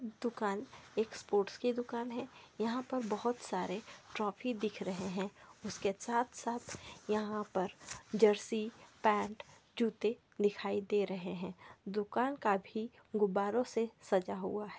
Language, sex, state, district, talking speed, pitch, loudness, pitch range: Hindi, female, Chhattisgarh, Bilaspur, 135 wpm, 215 Hz, -37 LUFS, 200-235 Hz